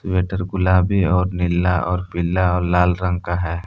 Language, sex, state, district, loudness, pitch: Hindi, male, Jharkhand, Palamu, -19 LUFS, 90 Hz